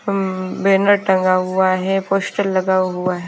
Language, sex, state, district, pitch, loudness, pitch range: Hindi, female, Himachal Pradesh, Shimla, 190 Hz, -17 LUFS, 185-195 Hz